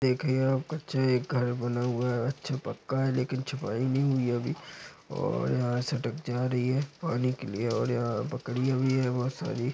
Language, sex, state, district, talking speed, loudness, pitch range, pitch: Hindi, male, Bihar, Supaul, 185 wpm, -30 LUFS, 120-135 Hz, 130 Hz